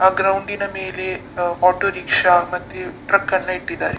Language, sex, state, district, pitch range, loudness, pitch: Kannada, female, Karnataka, Dakshina Kannada, 180-195 Hz, -19 LUFS, 185 Hz